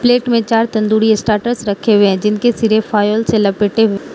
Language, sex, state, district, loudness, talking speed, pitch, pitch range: Hindi, female, Manipur, Imphal West, -14 LUFS, 215 wpm, 220 Hz, 210-225 Hz